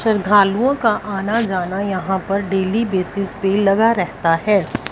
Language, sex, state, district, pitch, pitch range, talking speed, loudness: Hindi, female, Punjab, Fazilka, 195 Hz, 190-215 Hz, 145 wpm, -18 LUFS